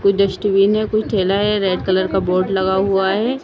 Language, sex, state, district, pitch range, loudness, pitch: Hindi, female, Jharkhand, Sahebganj, 190-210 Hz, -17 LUFS, 195 Hz